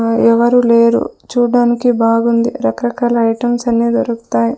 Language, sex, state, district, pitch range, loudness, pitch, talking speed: Telugu, female, Andhra Pradesh, Sri Satya Sai, 230-240 Hz, -13 LUFS, 235 Hz, 120 wpm